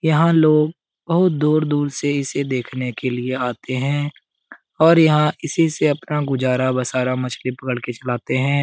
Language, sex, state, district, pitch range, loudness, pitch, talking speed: Hindi, male, Bihar, Jamui, 130-155 Hz, -19 LUFS, 140 Hz, 165 wpm